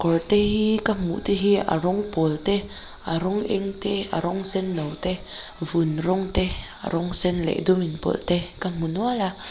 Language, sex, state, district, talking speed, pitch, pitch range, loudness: Mizo, female, Mizoram, Aizawl, 200 wpm, 185 Hz, 170-200 Hz, -22 LUFS